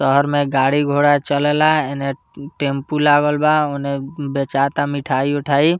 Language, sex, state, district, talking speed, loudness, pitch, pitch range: Bhojpuri, male, Bihar, Muzaffarpur, 115 wpm, -17 LUFS, 145 Hz, 140-145 Hz